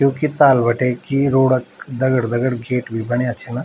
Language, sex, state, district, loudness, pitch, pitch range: Garhwali, male, Uttarakhand, Tehri Garhwal, -18 LUFS, 125 Hz, 120-135 Hz